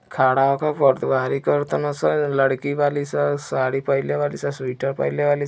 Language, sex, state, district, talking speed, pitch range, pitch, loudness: Hindi, male, Uttar Pradesh, Deoria, 155 wpm, 130-145 Hz, 135 Hz, -21 LUFS